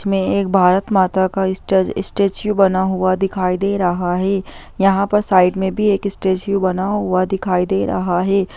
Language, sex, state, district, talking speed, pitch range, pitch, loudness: Hindi, female, Bihar, Muzaffarpur, 175 wpm, 185-195 Hz, 190 Hz, -17 LUFS